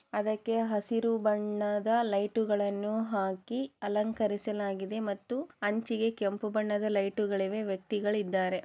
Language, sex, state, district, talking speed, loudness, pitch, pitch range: Kannada, female, Karnataka, Chamarajanagar, 90 wpm, -32 LUFS, 210 Hz, 200-225 Hz